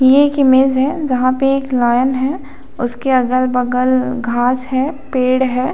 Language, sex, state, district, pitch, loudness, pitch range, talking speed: Hindi, female, Jharkhand, Jamtara, 260 Hz, -15 LUFS, 250-270 Hz, 165 wpm